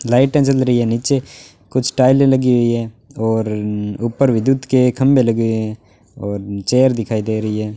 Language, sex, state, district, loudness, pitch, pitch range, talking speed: Hindi, male, Rajasthan, Bikaner, -16 LUFS, 120 Hz, 110-130 Hz, 185 wpm